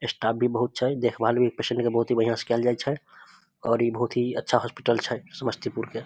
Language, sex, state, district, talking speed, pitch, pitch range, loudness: Maithili, male, Bihar, Samastipur, 230 wpm, 120 Hz, 115-125 Hz, -26 LUFS